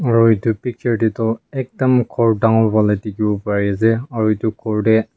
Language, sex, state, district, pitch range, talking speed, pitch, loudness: Nagamese, male, Nagaland, Kohima, 110-115 Hz, 175 wpm, 110 Hz, -17 LUFS